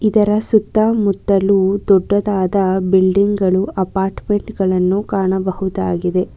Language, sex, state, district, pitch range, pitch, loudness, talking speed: Kannada, female, Karnataka, Bangalore, 190-205 Hz, 195 Hz, -16 LUFS, 85 wpm